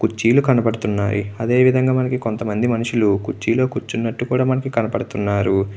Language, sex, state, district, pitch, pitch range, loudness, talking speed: Telugu, male, Andhra Pradesh, Chittoor, 115 Hz, 105-125 Hz, -19 LUFS, 125 wpm